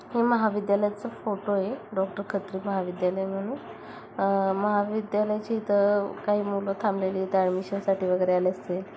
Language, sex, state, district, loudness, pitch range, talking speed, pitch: Marathi, female, Maharashtra, Chandrapur, -27 LUFS, 190-205 Hz, 135 wpm, 200 Hz